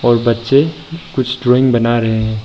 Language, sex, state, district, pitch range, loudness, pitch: Hindi, male, Arunachal Pradesh, Papum Pare, 115-135 Hz, -14 LUFS, 120 Hz